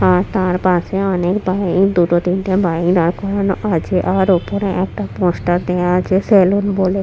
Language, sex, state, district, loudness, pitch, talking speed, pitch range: Bengali, female, West Bengal, Purulia, -16 LUFS, 185 Hz, 160 wpm, 180-195 Hz